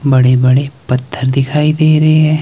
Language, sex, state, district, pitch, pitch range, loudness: Hindi, male, Himachal Pradesh, Shimla, 135 Hz, 130-155 Hz, -12 LUFS